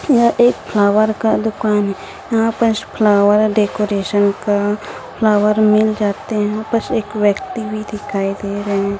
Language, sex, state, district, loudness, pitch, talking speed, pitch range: Hindi, female, Chhattisgarh, Raipur, -16 LUFS, 210 Hz, 145 wpm, 205-220 Hz